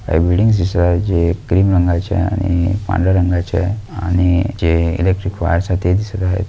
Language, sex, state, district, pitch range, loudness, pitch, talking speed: Marathi, male, Maharashtra, Solapur, 85-95 Hz, -16 LUFS, 90 Hz, 165 wpm